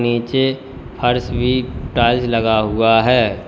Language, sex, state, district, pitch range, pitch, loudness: Hindi, male, Uttar Pradesh, Lalitpur, 115-125 Hz, 120 Hz, -16 LUFS